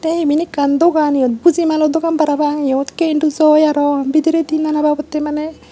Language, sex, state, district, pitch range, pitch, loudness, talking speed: Chakma, female, Tripura, Unakoti, 295-320 Hz, 305 Hz, -15 LUFS, 145 wpm